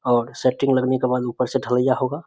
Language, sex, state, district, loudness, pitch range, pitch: Hindi, male, Bihar, Samastipur, -21 LUFS, 125-130 Hz, 130 Hz